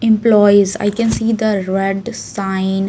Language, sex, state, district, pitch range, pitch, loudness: English, female, Maharashtra, Mumbai Suburban, 195-220 Hz, 205 Hz, -15 LUFS